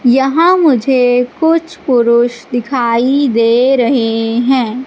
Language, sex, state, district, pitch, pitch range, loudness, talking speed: Hindi, female, Madhya Pradesh, Katni, 250 Hz, 240-270 Hz, -12 LUFS, 100 wpm